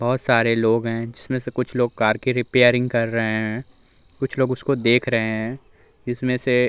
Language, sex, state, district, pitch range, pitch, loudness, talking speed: Hindi, male, Uttar Pradesh, Muzaffarnagar, 115-125 Hz, 125 Hz, -21 LUFS, 195 wpm